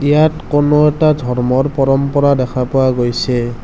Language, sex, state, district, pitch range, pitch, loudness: Assamese, male, Assam, Kamrup Metropolitan, 125-145 Hz, 135 Hz, -14 LUFS